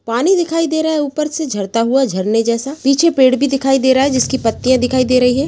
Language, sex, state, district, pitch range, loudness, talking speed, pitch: Hindi, female, Bihar, Jahanabad, 250-300 Hz, -14 LUFS, 265 wpm, 265 Hz